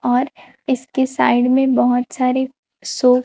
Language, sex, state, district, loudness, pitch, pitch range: Hindi, female, Chhattisgarh, Raipur, -18 LUFS, 255 Hz, 250-265 Hz